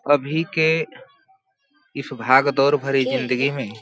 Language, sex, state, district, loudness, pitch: Hindi, male, Bihar, Darbhanga, -20 LUFS, 145 Hz